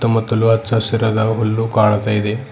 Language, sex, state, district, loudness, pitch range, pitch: Kannada, male, Karnataka, Bidar, -16 LUFS, 110-115 Hz, 110 Hz